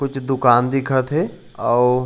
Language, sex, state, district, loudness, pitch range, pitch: Chhattisgarhi, male, Chhattisgarh, Raigarh, -18 LUFS, 125-135 Hz, 130 Hz